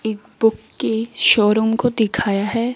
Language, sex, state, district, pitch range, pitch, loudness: Hindi, female, Rajasthan, Jaipur, 215-230 Hz, 220 Hz, -18 LUFS